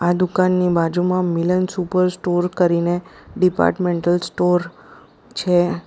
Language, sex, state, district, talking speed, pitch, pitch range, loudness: Gujarati, female, Gujarat, Valsad, 90 wpm, 180 Hz, 175-185 Hz, -19 LUFS